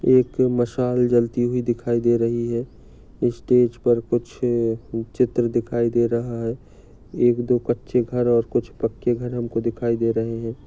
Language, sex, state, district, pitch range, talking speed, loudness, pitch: Hindi, male, Maharashtra, Dhule, 115-120 Hz, 165 wpm, -22 LUFS, 120 Hz